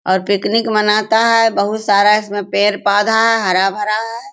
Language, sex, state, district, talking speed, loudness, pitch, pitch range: Hindi, female, Bihar, Sitamarhi, 150 wpm, -14 LUFS, 210 Hz, 200-225 Hz